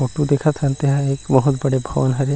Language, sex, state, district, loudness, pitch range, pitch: Chhattisgarhi, male, Chhattisgarh, Rajnandgaon, -18 LUFS, 130-140 Hz, 140 Hz